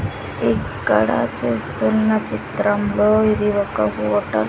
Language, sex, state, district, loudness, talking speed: Telugu, female, Andhra Pradesh, Sri Satya Sai, -19 LUFS, 95 wpm